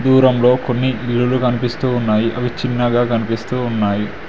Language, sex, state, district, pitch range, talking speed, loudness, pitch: Telugu, male, Telangana, Mahabubabad, 115-125 Hz, 125 wpm, -17 LUFS, 120 Hz